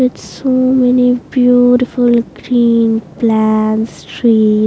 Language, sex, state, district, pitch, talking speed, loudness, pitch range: English, female, Maharashtra, Mumbai Suburban, 235 Hz, 105 wpm, -12 LUFS, 220-250 Hz